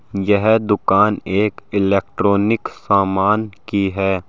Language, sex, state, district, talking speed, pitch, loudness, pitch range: Hindi, male, Uttar Pradesh, Saharanpur, 100 wpm, 100 Hz, -17 LUFS, 95-105 Hz